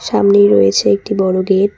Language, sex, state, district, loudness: Bengali, female, West Bengal, Cooch Behar, -12 LUFS